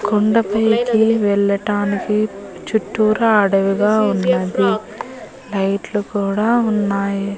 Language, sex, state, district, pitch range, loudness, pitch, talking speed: Telugu, female, Andhra Pradesh, Annamaya, 200-220 Hz, -17 LUFS, 205 Hz, 65 wpm